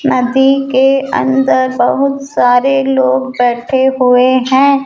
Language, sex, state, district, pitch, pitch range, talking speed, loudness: Hindi, female, Rajasthan, Jaipur, 260 Hz, 245-275 Hz, 110 wpm, -11 LUFS